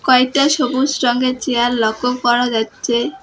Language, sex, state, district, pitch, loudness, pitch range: Bengali, female, West Bengal, Alipurduar, 250 Hz, -16 LUFS, 240-265 Hz